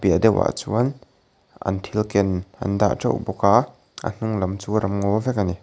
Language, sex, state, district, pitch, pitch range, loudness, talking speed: Mizo, male, Mizoram, Aizawl, 105 Hz, 95-110 Hz, -22 LUFS, 215 wpm